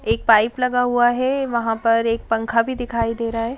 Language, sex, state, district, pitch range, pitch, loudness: Hindi, female, Madhya Pradesh, Bhopal, 230-245 Hz, 230 Hz, -19 LUFS